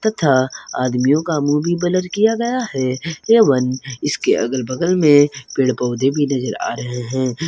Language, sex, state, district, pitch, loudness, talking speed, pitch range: Hindi, male, Jharkhand, Garhwa, 140 Hz, -17 LUFS, 160 wpm, 130-175 Hz